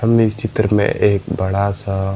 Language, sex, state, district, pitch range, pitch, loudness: Hindi, male, Bihar, Gaya, 95-110 Hz, 100 Hz, -17 LUFS